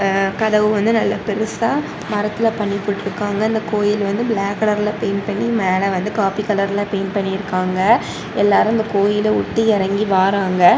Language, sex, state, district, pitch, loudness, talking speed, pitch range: Tamil, female, Tamil Nadu, Kanyakumari, 205 Hz, -18 LUFS, 150 wpm, 200-215 Hz